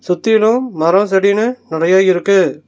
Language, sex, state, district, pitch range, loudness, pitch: Tamil, male, Tamil Nadu, Nilgiris, 175-220 Hz, -13 LUFS, 190 Hz